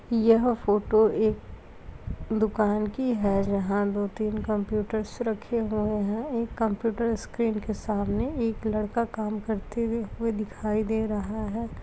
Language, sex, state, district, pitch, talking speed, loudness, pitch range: Hindi, female, Bihar, Kishanganj, 215 Hz, 130 wpm, -27 LUFS, 210-230 Hz